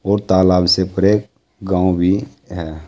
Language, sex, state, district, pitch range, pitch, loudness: Hindi, male, Uttar Pradesh, Saharanpur, 90-105 Hz, 95 Hz, -15 LUFS